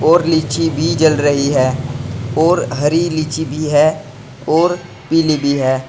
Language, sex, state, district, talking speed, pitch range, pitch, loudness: Hindi, male, Uttar Pradesh, Saharanpur, 155 wpm, 135-160 Hz, 150 Hz, -15 LUFS